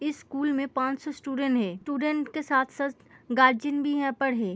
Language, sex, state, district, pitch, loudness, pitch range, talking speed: Hindi, female, Uttar Pradesh, Muzaffarnagar, 275 Hz, -27 LUFS, 260-290 Hz, 195 wpm